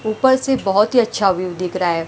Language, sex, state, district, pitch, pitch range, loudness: Hindi, female, Maharashtra, Mumbai Suburban, 205 Hz, 180-245 Hz, -17 LUFS